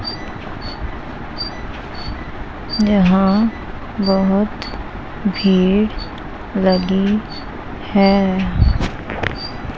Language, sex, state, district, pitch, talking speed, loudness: Hindi, female, Punjab, Pathankot, 190 Hz, 35 wpm, -18 LUFS